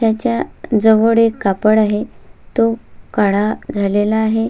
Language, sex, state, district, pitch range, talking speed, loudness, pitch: Marathi, female, Maharashtra, Sindhudurg, 210-230 Hz, 120 wpm, -16 LUFS, 220 Hz